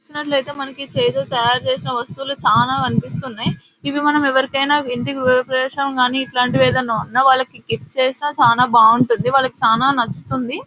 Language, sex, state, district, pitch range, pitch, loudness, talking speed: Telugu, female, Telangana, Nalgonda, 245-275 Hz, 260 Hz, -17 LUFS, 145 wpm